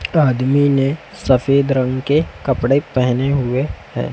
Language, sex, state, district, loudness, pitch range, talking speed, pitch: Hindi, male, Chhattisgarh, Raipur, -17 LUFS, 125-140 Hz, 130 wpm, 135 Hz